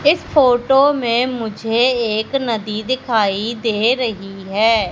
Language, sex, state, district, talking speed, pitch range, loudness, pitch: Hindi, female, Madhya Pradesh, Katni, 120 wpm, 215-255 Hz, -17 LUFS, 230 Hz